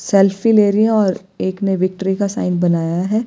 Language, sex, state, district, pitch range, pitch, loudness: Hindi, female, Himachal Pradesh, Shimla, 185-210 Hz, 195 Hz, -16 LUFS